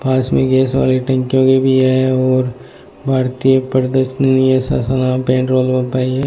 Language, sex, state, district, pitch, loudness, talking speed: Hindi, male, Rajasthan, Bikaner, 130 Hz, -14 LUFS, 115 wpm